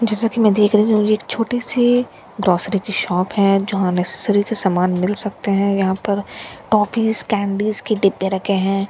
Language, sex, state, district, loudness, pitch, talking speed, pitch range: Hindi, female, Bihar, Katihar, -18 LUFS, 205 Hz, 195 wpm, 195-215 Hz